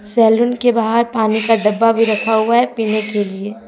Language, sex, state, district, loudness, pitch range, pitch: Hindi, female, Jharkhand, Deoghar, -15 LUFS, 215-230 Hz, 225 Hz